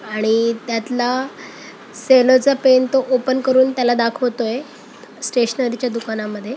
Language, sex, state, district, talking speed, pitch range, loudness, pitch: Marathi, female, Maharashtra, Pune, 120 wpm, 230-260 Hz, -17 LUFS, 250 Hz